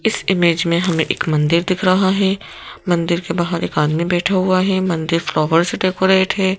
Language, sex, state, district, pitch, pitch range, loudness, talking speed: Hindi, female, Madhya Pradesh, Bhopal, 175 Hz, 170-190 Hz, -17 LUFS, 200 wpm